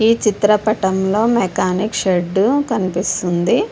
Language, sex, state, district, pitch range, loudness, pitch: Telugu, female, Andhra Pradesh, Visakhapatnam, 185-220 Hz, -16 LUFS, 205 Hz